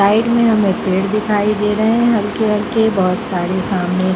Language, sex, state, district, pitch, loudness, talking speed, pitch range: Hindi, female, Bihar, Jamui, 210 Hz, -15 LUFS, 190 wpm, 185-220 Hz